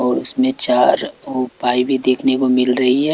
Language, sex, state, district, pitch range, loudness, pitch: Hindi, male, Chhattisgarh, Raipur, 125-140 Hz, -16 LUFS, 130 Hz